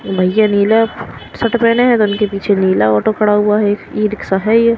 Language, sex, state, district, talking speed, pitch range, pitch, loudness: Hindi, female, Haryana, Rohtak, 215 wpm, 195-225 Hz, 210 Hz, -13 LUFS